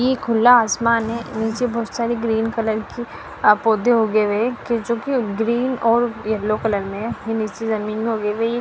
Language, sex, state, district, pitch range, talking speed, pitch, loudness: Hindi, female, Punjab, Fazilka, 220-235 Hz, 165 wpm, 225 Hz, -19 LUFS